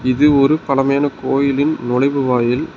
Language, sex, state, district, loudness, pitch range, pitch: Tamil, male, Tamil Nadu, Nilgiris, -15 LUFS, 130-140 Hz, 140 Hz